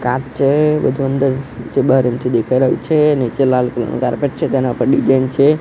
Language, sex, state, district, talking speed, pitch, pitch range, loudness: Gujarati, male, Gujarat, Gandhinagar, 215 wpm, 130 Hz, 125-140 Hz, -15 LUFS